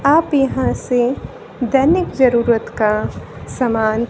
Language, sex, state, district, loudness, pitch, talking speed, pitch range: Hindi, female, Haryana, Jhajjar, -17 LUFS, 245 Hz, 100 wpm, 235-275 Hz